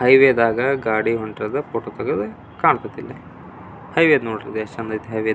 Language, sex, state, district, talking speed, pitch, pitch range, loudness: Kannada, male, Karnataka, Belgaum, 180 wpm, 115 Hz, 110-125 Hz, -20 LUFS